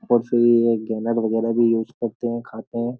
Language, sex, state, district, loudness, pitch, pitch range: Hindi, male, Uttar Pradesh, Jyotiba Phule Nagar, -21 LUFS, 115 Hz, 115-120 Hz